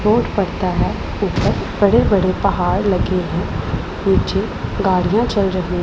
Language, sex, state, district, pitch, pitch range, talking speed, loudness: Hindi, female, Punjab, Pathankot, 195 Hz, 185-210 Hz, 135 wpm, -18 LUFS